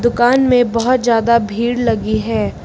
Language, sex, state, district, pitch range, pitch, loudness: Hindi, female, Uttar Pradesh, Lucknow, 225-245 Hz, 235 Hz, -14 LUFS